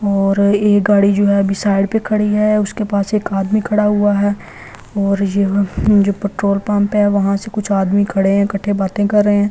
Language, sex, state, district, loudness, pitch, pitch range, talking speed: Hindi, female, Delhi, New Delhi, -15 LUFS, 200 Hz, 200-210 Hz, 215 wpm